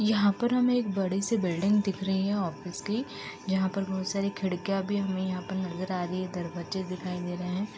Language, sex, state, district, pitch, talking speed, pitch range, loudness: Hindi, female, Uttar Pradesh, Deoria, 190 Hz, 230 wpm, 185-200 Hz, -30 LUFS